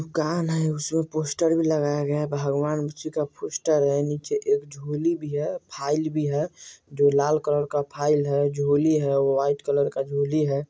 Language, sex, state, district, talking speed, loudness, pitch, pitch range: Bajjika, male, Bihar, Vaishali, 180 wpm, -24 LUFS, 145 Hz, 145-155 Hz